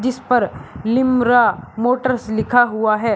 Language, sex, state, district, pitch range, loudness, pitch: Hindi, male, Uttar Pradesh, Shamli, 220-250 Hz, -17 LUFS, 245 Hz